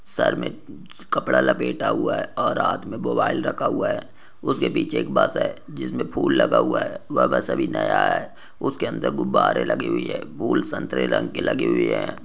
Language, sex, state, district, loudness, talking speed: Hindi, male, Maharashtra, Solapur, -22 LUFS, 200 wpm